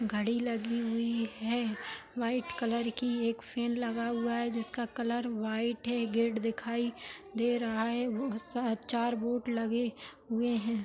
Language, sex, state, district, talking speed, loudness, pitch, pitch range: Hindi, female, Jharkhand, Sahebganj, 160 wpm, -33 LUFS, 235 Hz, 230-240 Hz